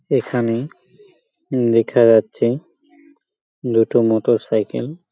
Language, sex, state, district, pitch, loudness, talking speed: Bengali, male, West Bengal, Purulia, 120 Hz, -18 LUFS, 80 wpm